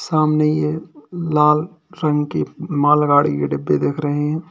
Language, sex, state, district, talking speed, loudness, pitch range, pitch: Hindi, male, Uttar Pradesh, Lalitpur, 145 wpm, -18 LUFS, 145-155 Hz, 150 Hz